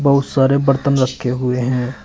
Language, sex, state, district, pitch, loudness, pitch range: Hindi, male, Uttar Pradesh, Shamli, 130 Hz, -16 LUFS, 125-140 Hz